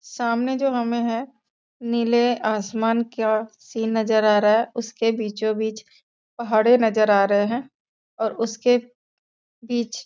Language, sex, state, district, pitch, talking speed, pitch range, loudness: Hindi, female, Bihar, Sitamarhi, 230 Hz, 145 wpm, 220-235 Hz, -21 LUFS